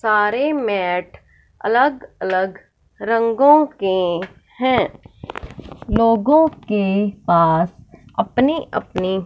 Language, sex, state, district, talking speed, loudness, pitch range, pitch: Hindi, male, Punjab, Fazilka, 80 wpm, -18 LUFS, 185-250 Hz, 210 Hz